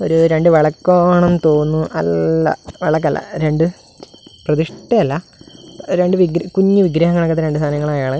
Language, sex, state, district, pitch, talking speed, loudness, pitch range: Malayalam, male, Kerala, Kasaragod, 165 Hz, 115 wpm, -15 LUFS, 150-180 Hz